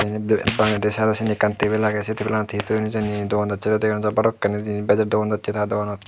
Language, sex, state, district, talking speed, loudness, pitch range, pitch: Chakma, male, Tripura, Dhalai, 225 wpm, -21 LUFS, 105-110 Hz, 105 Hz